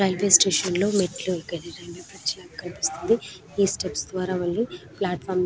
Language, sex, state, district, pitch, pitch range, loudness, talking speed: Telugu, female, Telangana, Nalgonda, 185 Hz, 175-195 Hz, -24 LUFS, 120 wpm